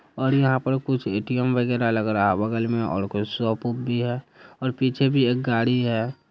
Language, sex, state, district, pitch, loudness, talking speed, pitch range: Hindi, male, Bihar, Saharsa, 120 Hz, -23 LUFS, 230 wpm, 110-130 Hz